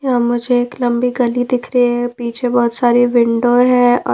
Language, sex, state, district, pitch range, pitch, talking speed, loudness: Hindi, female, Punjab, Pathankot, 240-245 Hz, 245 Hz, 200 wpm, -14 LUFS